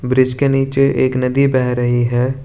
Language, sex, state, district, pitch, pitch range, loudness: Hindi, male, Arunachal Pradesh, Lower Dibang Valley, 130 Hz, 125-135 Hz, -15 LUFS